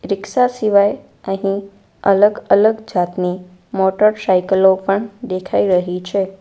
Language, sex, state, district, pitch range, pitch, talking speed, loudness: Gujarati, female, Gujarat, Valsad, 185-210 Hz, 195 Hz, 95 wpm, -16 LUFS